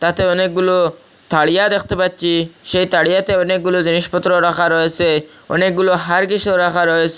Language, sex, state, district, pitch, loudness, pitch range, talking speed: Bengali, male, Assam, Hailakandi, 175 Hz, -15 LUFS, 170-185 Hz, 125 wpm